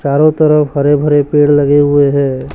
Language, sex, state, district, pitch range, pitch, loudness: Hindi, male, Chhattisgarh, Raipur, 140-150 Hz, 145 Hz, -10 LUFS